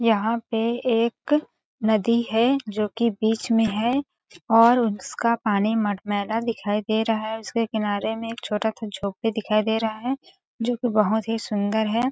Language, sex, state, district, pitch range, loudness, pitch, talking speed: Hindi, female, Chhattisgarh, Balrampur, 215-235 Hz, -23 LUFS, 225 Hz, 175 wpm